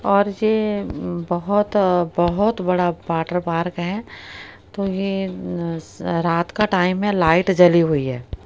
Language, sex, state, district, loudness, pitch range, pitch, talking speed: Hindi, female, Haryana, Rohtak, -20 LUFS, 170-200 Hz, 180 Hz, 135 wpm